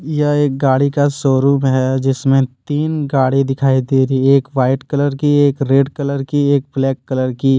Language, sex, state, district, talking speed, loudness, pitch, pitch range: Hindi, male, Jharkhand, Deoghar, 195 wpm, -15 LUFS, 135 Hz, 135-145 Hz